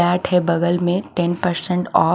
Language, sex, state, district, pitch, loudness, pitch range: Hindi, female, Haryana, Charkhi Dadri, 175 Hz, -19 LUFS, 175-180 Hz